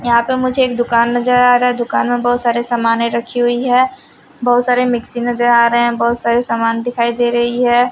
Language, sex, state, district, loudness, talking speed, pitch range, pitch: Hindi, female, Haryana, Rohtak, -14 LUFS, 235 wpm, 235-245 Hz, 240 Hz